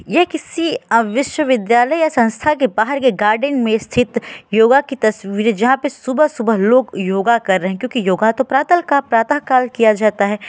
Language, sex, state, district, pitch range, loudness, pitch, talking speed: Hindi, female, Uttar Pradesh, Varanasi, 220-275 Hz, -15 LUFS, 240 Hz, 175 wpm